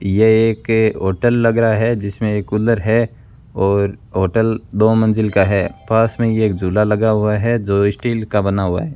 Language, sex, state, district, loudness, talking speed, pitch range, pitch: Hindi, male, Rajasthan, Bikaner, -16 LUFS, 200 wpm, 100-115 Hz, 110 Hz